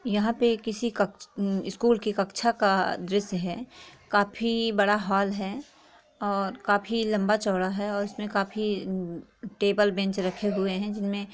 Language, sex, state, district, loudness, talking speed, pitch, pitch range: Hindi, female, Chhattisgarh, Korba, -27 LUFS, 150 wpm, 205 Hz, 195-215 Hz